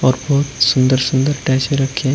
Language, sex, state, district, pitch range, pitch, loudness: Hindi, male, Uttar Pradesh, Shamli, 130-140 Hz, 135 Hz, -15 LUFS